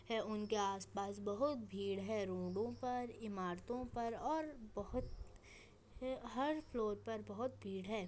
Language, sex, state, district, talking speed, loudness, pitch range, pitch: Hindi, male, Maharashtra, Nagpur, 140 wpm, -43 LUFS, 200-245 Hz, 220 Hz